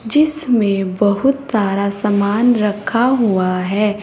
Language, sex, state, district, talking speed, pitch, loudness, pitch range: Hindi, female, Uttar Pradesh, Saharanpur, 105 wpm, 210 Hz, -16 LUFS, 200-245 Hz